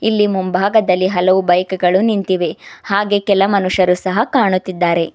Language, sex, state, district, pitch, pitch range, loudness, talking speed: Kannada, female, Karnataka, Bidar, 190 Hz, 185-200 Hz, -15 LUFS, 130 wpm